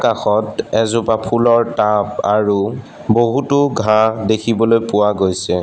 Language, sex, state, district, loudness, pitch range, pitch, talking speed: Assamese, male, Assam, Sonitpur, -15 LUFS, 105-115 Hz, 110 Hz, 105 wpm